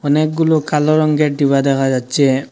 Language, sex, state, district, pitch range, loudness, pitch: Bengali, male, Assam, Hailakandi, 140-155 Hz, -15 LUFS, 145 Hz